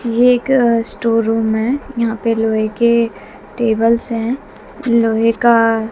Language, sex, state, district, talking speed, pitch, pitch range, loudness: Hindi, female, Haryana, Jhajjar, 140 wpm, 230 Hz, 225-235 Hz, -15 LUFS